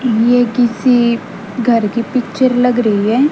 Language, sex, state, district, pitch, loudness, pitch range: Hindi, female, Haryana, Rohtak, 240 Hz, -13 LUFS, 225-250 Hz